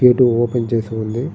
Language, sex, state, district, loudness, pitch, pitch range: Telugu, male, Andhra Pradesh, Srikakulam, -17 LUFS, 120 Hz, 115-125 Hz